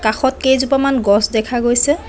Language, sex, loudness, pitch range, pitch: Assamese, female, -15 LUFS, 220-270 Hz, 260 Hz